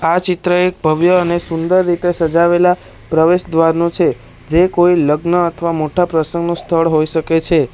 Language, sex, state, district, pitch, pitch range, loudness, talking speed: Gujarati, male, Gujarat, Valsad, 170 Hz, 165-175 Hz, -14 LUFS, 165 wpm